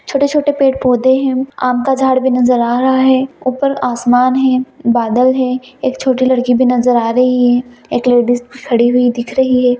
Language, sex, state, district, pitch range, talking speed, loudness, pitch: Hindi, female, Bihar, Gaya, 245-260 Hz, 195 wpm, -13 LUFS, 255 Hz